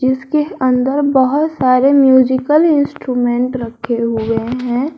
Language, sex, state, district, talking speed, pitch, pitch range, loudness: Hindi, female, Jharkhand, Garhwa, 110 wpm, 260 Hz, 245-280 Hz, -14 LUFS